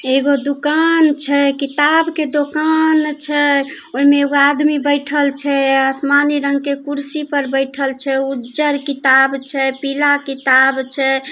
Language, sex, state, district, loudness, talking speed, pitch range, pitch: Maithili, female, Bihar, Samastipur, -15 LUFS, 140 wpm, 270-295 Hz, 280 Hz